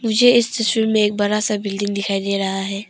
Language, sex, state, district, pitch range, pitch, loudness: Hindi, female, Arunachal Pradesh, Papum Pare, 200-225 Hz, 210 Hz, -18 LUFS